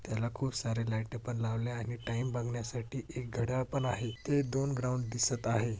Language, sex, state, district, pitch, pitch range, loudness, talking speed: Marathi, male, Maharashtra, Dhule, 120 Hz, 115-125 Hz, -35 LUFS, 195 wpm